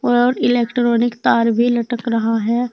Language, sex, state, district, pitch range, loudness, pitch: Hindi, female, Uttar Pradesh, Saharanpur, 230-245 Hz, -17 LUFS, 240 Hz